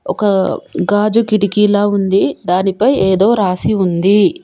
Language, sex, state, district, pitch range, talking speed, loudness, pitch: Telugu, female, Telangana, Komaram Bheem, 190-210 Hz, 120 wpm, -13 LUFS, 200 Hz